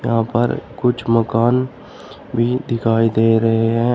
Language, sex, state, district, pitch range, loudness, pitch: Hindi, male, Uttar Pradesh, Shamli, 115-120 Hz, -17 LUFS, 115 Hz